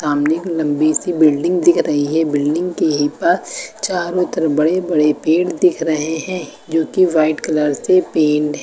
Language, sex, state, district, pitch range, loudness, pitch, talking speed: Hindi, female, Uttar Pradesh, Lucknow, 150-180 Hz, -16 LUFS, 160 Hz, 190 wpm